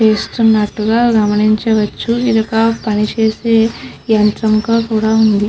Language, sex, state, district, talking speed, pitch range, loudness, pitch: Telugu, female, Andhra Pradesh, Krishna, 100 wpm, 215-225 Hz, -13 LUFS, 220 Hz